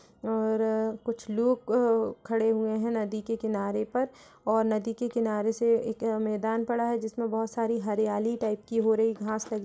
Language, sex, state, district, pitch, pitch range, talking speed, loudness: Hindi, female, Uttar Pradesh, Budaun, 225 Hz, 220-230 Hz, 205 wpm, -28 LUFS